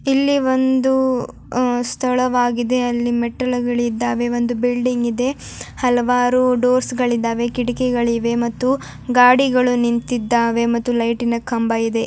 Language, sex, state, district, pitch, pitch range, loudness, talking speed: Kannada, male, Karnataka, Dharwad, 245 Hz, 235-250 Hz, -18 LUFS, 100 wpm